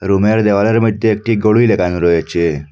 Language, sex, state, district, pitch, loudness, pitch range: Bengali, male, Assam, Hailakandi, 100 Hz, -13 LUFS, 85-110 Hz